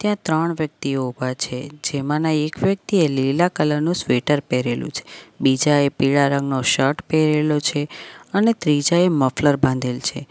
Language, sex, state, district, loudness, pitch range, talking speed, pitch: Gujarati, female, Gujarat, Valsad, -20 LUFS, 135-155 Hz, 150 wpm, 145 Hz